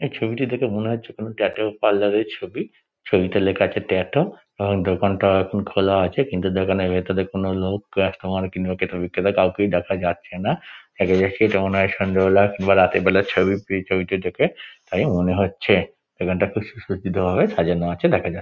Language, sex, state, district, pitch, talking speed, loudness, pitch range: Bengali, male, West Bengal, Dakshin Dinajpur, 95 Hz, 190 wpm, -21 LUFS, 95-100 Hz